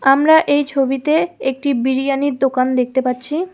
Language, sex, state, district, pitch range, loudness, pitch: Bengali, female, West Bengal, Alipurduar, 260-295 Hz, -16 LUFS, 275 Hz